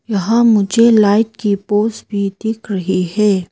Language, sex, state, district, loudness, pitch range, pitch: Hindi, female, Arunachal Pradesh, Papum Pare, -15 LUFS, 200-220 Hz, 210 Hz